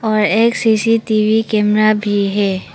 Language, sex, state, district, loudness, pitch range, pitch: Hindi, female, Arunachal Pradesh, Papum Pare, -14 LUFS, 205-220 Hz, 215 Hz